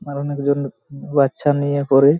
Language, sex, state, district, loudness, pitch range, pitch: Bengali, male, Jharkhand, Jamtara, -18 LUFS, 140-145 Hz, 140 Hz